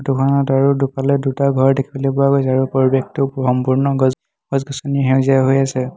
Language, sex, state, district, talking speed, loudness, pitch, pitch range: Assamese, male, Assam, Hailakandi, 170 wpm, -16 LUFS, 135 Hz, 130-140 Hz